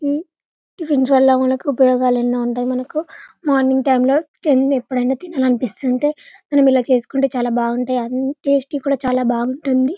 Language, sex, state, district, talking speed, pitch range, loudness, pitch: Telugu, female, Telangana, Karimnagar, 140 wpm, 255-280 Hz, -17 LUFS, 265 Hz